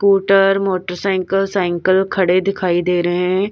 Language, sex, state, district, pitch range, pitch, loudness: Hindi, female, Bihar, Patna, 180-195 Hz, 190 Hz, -16 LUFS